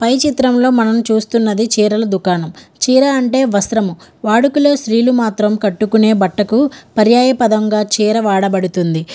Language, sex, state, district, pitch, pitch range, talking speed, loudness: Telugu, female, Andhra Pradesh, Guntur, 220 Hz, 210-250 Hz, 120 wpm, -13 LUFS